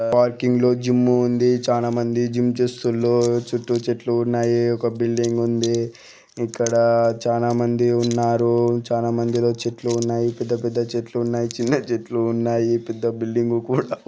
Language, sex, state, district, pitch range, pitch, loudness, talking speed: Telugu, male, Andhra Pradesh, Guntur, 115-120 Hz, 120 Hz, -21 LUFS, 130 wpm